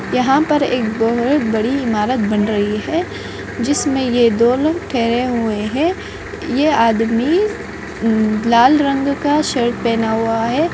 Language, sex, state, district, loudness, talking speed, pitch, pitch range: Hindi, female, Bihar, Purnia, -16 LUFS, 140 wpm, 245 Hz, 225-290 Hz